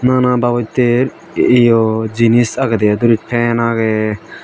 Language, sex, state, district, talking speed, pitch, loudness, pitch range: Chakma, male, Tripura, Dhalai, 120 wpm, 115 Hz, -14 LUFS, 110-120 Hz